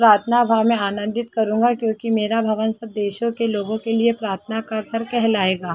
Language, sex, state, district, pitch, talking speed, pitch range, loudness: Hindi, female, Chhattisgarh, Balrampur, 225 Hz, 200 wpm, 215-230 Hz, -20 LUFS